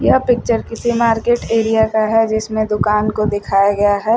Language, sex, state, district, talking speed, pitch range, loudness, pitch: Hindi, female, Uttar Pradesh, Shamli, 185 wpm, 210-230 Hz, -16 LUFS, 220 Hz